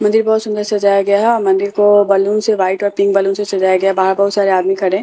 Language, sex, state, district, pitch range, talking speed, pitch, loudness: Hindi, female, Bihar, Katihar, 195-210 Hz, 295 wpm, 200 Hz, -13 LUFS